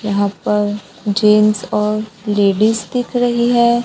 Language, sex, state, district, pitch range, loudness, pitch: Hindi, male, Maharashtra, Gondia, 205-235 Hz, -16 LUFS, 210 Hz